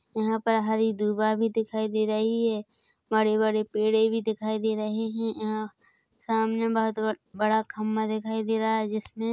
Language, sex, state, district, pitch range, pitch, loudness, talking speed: Hindi, female, Chhattisgarh, Bilaspur, 215-225 Hz, 220 Hz, -27 LUFS, 165 wpm